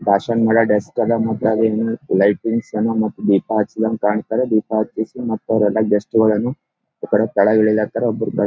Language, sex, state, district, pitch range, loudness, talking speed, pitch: Kannada, male, Karnataka, Gulbarga, 105-115 Hz, -18 LUFS, 140 wpm, 110 Hz